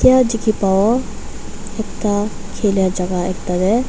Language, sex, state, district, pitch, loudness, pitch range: Nagamese, female, Nagaland, Dimapur, 210 Hz, -18 LUFS, 190-225 Hz